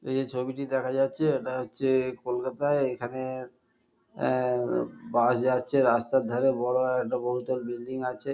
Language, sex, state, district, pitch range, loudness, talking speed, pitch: Bengali, male, West Bengal, Kolkata, 125-130 Hz, -28 LUFS, 135 wpm, 130 Hz